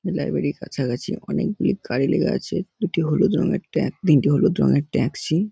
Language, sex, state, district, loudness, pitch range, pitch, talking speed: Bengali, male, West Bengal, North 24 Parganas, -22 LUFS, 135-195 Hz, 170 Hz, 175 wpm